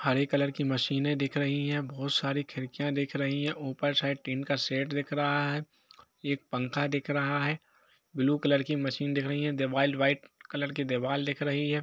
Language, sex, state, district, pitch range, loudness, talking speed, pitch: Hindi, male, Jharkhand, Jamtara, 140-145 Hz, -30 LUFS, 210 wpm, 140 Hz